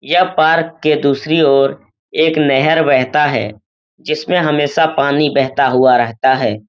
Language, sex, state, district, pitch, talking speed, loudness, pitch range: Hindi, male, Uttar Pradesh, Etah, 140 Hz, 145 wpm, -13 LUFS, 130-155 Hz